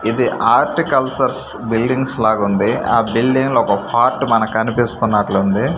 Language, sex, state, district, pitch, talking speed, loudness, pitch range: Telugu, male, Andhra Pradesh, Manyam, 115 Hz, 125 wpm, -15 LUFS, 110-130 Hz